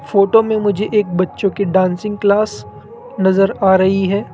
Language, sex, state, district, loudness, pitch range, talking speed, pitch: Hindi, male, Rajasthan, Jaipur, -15 LUFS, 190-210 Hz, 165 wpm, 200 Hz